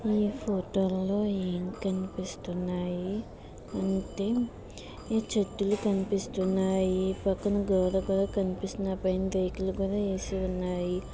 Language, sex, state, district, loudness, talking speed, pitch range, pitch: Telugu, female, Andhra Pradesh, Visakhapatnam, -30 LUFS, 80 wpm, 185-200 Hz, 190 Hz